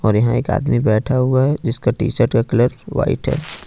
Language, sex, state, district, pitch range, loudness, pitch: Hindi, male, Jharkhand, Ranchi, 115-130 Hz, -17 LUFS, 120 Hz